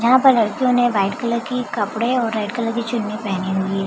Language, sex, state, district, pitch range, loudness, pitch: Hindi, female, Bihar, Begusarai, 205-245 Hz, -19 LUFS, 230 Hz